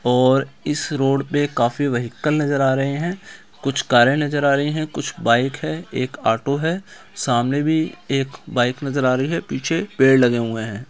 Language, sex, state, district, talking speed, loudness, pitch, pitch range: Hindi, male, Bihar, Gaya, 200 wpm, -20 LUFS, 135 Hz, 125-150 Hz